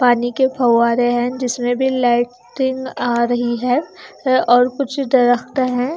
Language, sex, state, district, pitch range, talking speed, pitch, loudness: Hindi, female, Haryana, Charkhi Dadri, 240-260 Hz, 140 wpm, 245 Hz, -17 LUFS